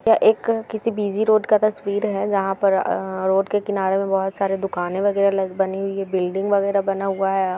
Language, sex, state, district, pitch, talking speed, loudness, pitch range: Hindi, female, Bihar, Gaya, 195 Hz, 220 wpm, -21 LUFS, 195-205 Hz